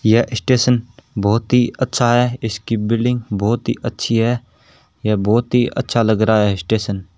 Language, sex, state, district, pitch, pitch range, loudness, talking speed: Hindi, male, Rajasthan, Bikaner, 115 Hz, 110-125 Hz, -17 LUFS, 175 wpm